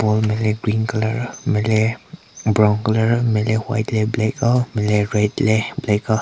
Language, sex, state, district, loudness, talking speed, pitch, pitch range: Rengma, male, Nagaland, Kohima, -19 LUFS, 200 wpm, 110 Hz, 105-115 Hz